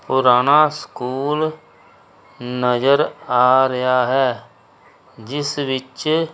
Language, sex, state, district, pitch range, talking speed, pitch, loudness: Punjabi, male, Punjab, Kapurthala, 125-145 Hz, 75 wpm, 130 Hz, -18 LUFS